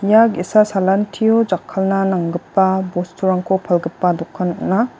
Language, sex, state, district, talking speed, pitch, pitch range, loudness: Garo, female, Meghalaya, West Garo Hills, 110 wpm, 190 Hz, 180-200 Hz, -17 LUFS